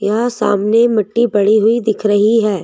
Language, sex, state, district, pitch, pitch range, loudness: Hindi, female, Madhya Pradesh, Bhopal, 215 Hz, 205-230 Hz, -13 LUFS